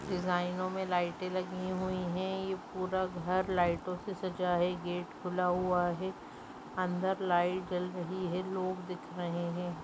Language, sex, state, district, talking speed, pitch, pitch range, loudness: Bhojpuri, female, Uttar Pradesh, Gorakhpur, 150 wpm, 180 Hz, 180-185 Hz, -34 LUFS